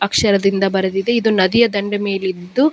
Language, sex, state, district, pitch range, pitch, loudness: Kannada, female, Karnataka, Dakshina Kannada, 190-220 Hz, 200 Hz, -16 LUFS